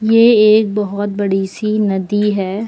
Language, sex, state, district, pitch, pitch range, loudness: Hindi, female, Uttar Pradesh, Lucknow, 210 Hz, 200-215 Hz, -14 LUFS